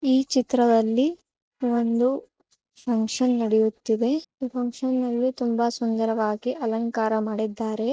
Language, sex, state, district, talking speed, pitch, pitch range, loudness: Kannada, female, Karnataka, Chamarajanagar, 90 wpm, 235 Hz, 225-255 Hz, -24 LUFS